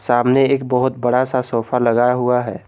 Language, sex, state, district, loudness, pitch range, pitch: Hindi, male, Jharkhand, Garhwa, -17 LUFS, 120-130 Hz, 125 Hz